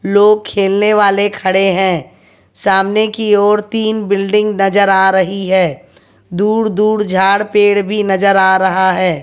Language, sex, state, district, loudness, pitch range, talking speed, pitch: Hindi, female, Haryana, Jhajjar, -12 LUFS, 190-210 Hz, 150 wpm, 200 Hz